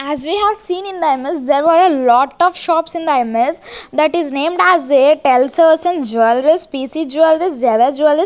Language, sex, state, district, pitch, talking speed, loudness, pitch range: English, female, Chandigarh, Chandigarh, 310 Hz, 190 wpm, -14 LUFS, 275-340 Hz